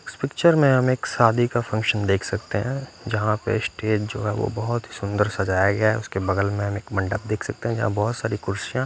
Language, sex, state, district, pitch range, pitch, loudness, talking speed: Hindi, male, Punjab, Fazilka, 100-120 Hz, 110 Hz, -23 LUFS, 255 wpm